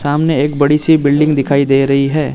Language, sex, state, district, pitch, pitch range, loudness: Hindi, male, Arunachal Pradesh, Lower Dibang Valley, 145 Hz, 140-150 Hz, -12 LUFS